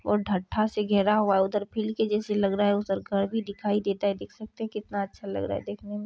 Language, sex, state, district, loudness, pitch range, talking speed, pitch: Maithili, female, Bihar, Saharsa, -27 LUFS, 200-210 Hz, 255 wpm, 205 Hz